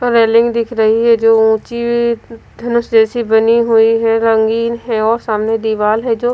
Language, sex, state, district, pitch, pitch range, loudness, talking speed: Hindi, female, Punjab, Fazilka, 230 Hz, 225-235 Hz, -13 LUFS, 170 wpm